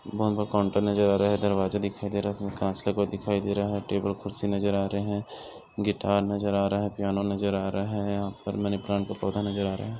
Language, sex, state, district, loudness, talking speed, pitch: Hindi, male, Goa, North and South Goa, -28 LUFS, 275 wpm, 100 Hz